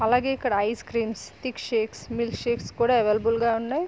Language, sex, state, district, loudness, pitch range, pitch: Telugu, female, Andhra Pradesh, Srikakulam, -25 LUFS, 225-250 Hz, 235 Hz